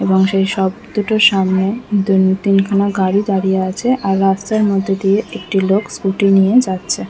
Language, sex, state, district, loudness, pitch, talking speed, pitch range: Bengali, female, West Bengal, Kolkata, -15 LUFS, 195 Hz, 160 wpm, 190-200 Hz